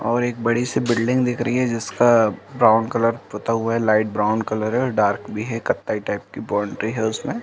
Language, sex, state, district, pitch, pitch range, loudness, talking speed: Hindi, male, Uttar Pradesh, Jalaun, 115 Hz, 110-120 Hz, -21 LUFS, 235 wpm